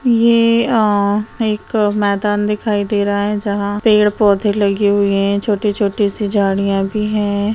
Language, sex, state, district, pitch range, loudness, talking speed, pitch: Hindi, female, Bihar, Samastipur, 200-215 Hz, -15 LUFS, 145 wpm, 205 Hz